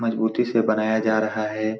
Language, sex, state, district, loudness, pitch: Hindi, male, Bihar, Supaul, -22 LUFS, 110 Hz